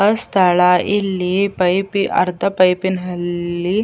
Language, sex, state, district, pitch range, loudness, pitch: Kannada, female, Karnataka, Chamarajanagar, 180-195 Hz, -17 LUFS, 185 Hz